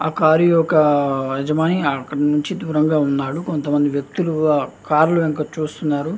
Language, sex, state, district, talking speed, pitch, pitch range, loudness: Telugu, male, Andhra Pradesh, Anantapur, 135 wpm, 155 Hz, 145-160 Hz, -18 LUFS